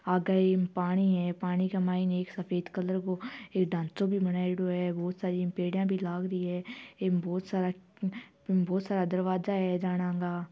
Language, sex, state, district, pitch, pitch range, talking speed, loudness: Marwari, female, Rajasthan, Churu, 185 Hz, 180-190 Hz, 180 wpm, -31 LUFS